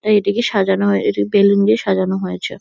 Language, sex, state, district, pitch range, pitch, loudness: Bengali, female, West Bengal, Kolkata, 190-210 Hz, 200 Hz, -16 LUFS